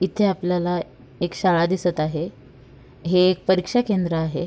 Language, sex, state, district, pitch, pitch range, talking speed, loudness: Marathi, female, Maharashtra, Sindhudurg, 175 Hz, 160-185 Hz, 145 wpm, -22 LUFS